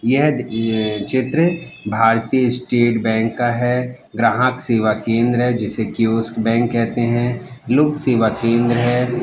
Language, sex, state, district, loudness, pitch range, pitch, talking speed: Hindi, male, Madhya Pradesh, Katni, -18 LUFS, 115-125 Hz, 120 Hz, 130 wpm